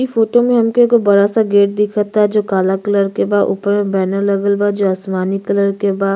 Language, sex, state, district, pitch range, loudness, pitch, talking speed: Bhojpuri, female, Uttar Pradesh, Gorakhpur, 195-210 Hz, -14 LUFS, 200 Hz, 225 wpm